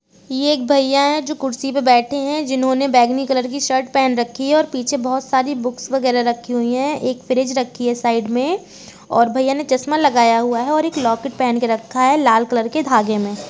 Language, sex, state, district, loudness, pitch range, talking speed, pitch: Hindi, female, Uttar Pradesh, Jalaun, -17 LUFS, 240-280 Hz, 220 wpm, 260 Hz